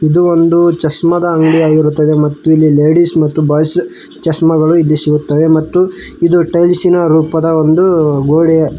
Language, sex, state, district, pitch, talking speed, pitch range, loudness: Kannada, male, Karnataka, Koppal, 160 Hz, 130 wpm, 155-170 Hz, -10 LUFS